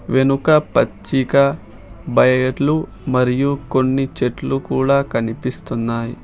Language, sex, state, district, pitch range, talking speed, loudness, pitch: Telugu, male, Telangana, Hyderabad, 125-140 Hz, 75 wpm, -18 LUFS, 130 Hz